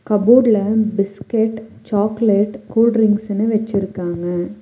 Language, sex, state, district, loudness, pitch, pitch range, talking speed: Tamil, female, Tamil Nadu, Nilgiris, -17 LUFS, 215 Hz, 200-220 Hz, 80 wpm